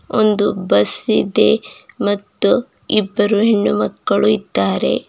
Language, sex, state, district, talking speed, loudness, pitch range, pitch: Kannada, female, Karnataka, Bidar, 95 wpm, -16 LUFS, 205-215 Hz, 210 Hz